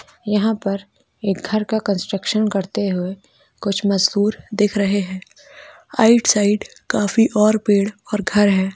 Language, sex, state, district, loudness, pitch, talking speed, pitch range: Hindi, male, Rajasthan, Churu, -19 LUFS, 205 Hz, 145 wpm, 195-215 Hz